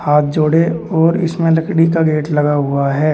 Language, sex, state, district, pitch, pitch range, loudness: Hindi, male, Uttar Pradesh, Shamli, 155 Hz, 150-165 Hz, -14 LUFS